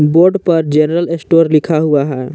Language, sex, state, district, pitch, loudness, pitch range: Hindi, male, Jharkhand, Palamu, 160 Hz, -12 LUFS, 150-170 Hz